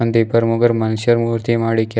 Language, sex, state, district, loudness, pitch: Kannada, male, Karnataka, Bidar, -16 LUFS, 115 Hz